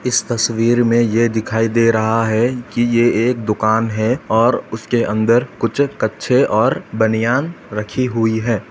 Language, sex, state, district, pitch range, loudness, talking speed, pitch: Hindi, male, Chhattisgarh, Bastar, 110-120 Hz, -16 LUFS, 160 wpm, 115 Hz